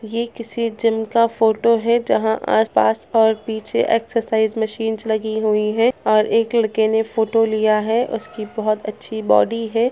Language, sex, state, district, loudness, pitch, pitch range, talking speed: Bhojpuri, female, Bihar, Saran, -19 LUFS, 220 Hz, 215-230 Hz, 175 wpm